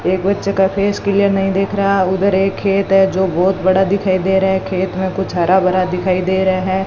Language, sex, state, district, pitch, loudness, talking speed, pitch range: Hindi, female, Rajasthan, Bikaner, 190 Hz, -15 LUFS, 245 wpm, 185-195 Hz